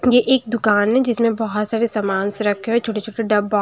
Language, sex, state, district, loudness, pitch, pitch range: Hindi, female, Punjab, Kapurthala, -19 LUFS, 225 Hz, 210-235 Hz